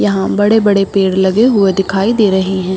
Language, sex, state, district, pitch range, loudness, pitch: Hindi, female, Bihar, Saharsa, 190-205 Hz, -12 LUFS, 195 Hz